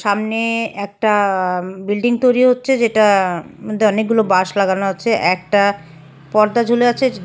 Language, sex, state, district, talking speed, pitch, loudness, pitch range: Bengali, female, Assam, Hailakandi, 140 wpm, 210 Hz, -16 LUFS, 190-230 Hz